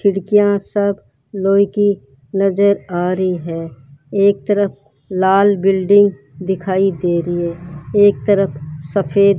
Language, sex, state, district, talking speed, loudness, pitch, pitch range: Hindi, male, Rajasthan, Bikaner, 130 wpm, -16 LUFS, 195 Hz, 170-200 Hz